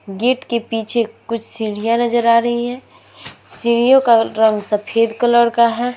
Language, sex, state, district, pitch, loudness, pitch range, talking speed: Hindi, female, Uttar Pradesh, Muzaffarnagar, 235 Hz, -16 LUFS, 225-240 Hz, 160 wpm